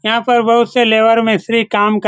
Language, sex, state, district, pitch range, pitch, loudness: Hindi, male, Bihar, Saran, 220-235 Hz, 230 Hz, -12 LUFS